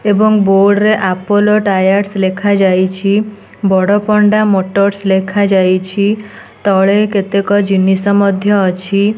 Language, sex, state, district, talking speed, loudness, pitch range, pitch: Odia, female, Odisha, Nuapada, 85 wpm, -12 LUFS, 190-205 Hz, 200 Hz